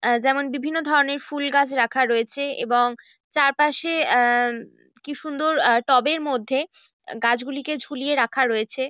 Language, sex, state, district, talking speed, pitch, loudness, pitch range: Bengali, female, West Bengal, Jhargram, 140 wpm, 275 Hz, -21 LUFS, 245-290 Hz